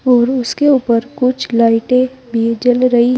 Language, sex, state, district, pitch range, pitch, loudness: Hindi, female, Uttar Pradesh, Saharanpur, 235-255 Hz, 250 Hz, -14 LUFS